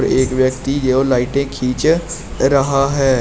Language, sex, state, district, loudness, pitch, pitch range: Hindi, male, Uttar Pradesh, Shamli, -16 LUFS, 135 Hz, 130-140 Hz